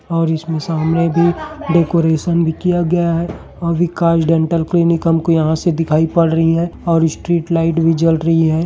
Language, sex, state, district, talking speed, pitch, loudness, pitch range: Hindi, male, Chhattisgarh, Bilaspur, 195 wpm, 165 Hz, -15 LUFS, 165-170 Hz